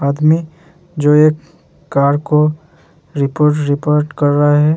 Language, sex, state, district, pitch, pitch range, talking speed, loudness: Hindi, male, Bihar, Vaishali, 150 Hz, 145-155 Hz, 140 wpm, -14 LUFS